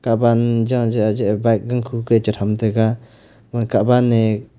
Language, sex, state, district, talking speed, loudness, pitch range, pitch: Wancho, male, Arunachal Pradesh, Longding, 170 wpm, -18 LUFS, 110-120 Hz, 115 Hz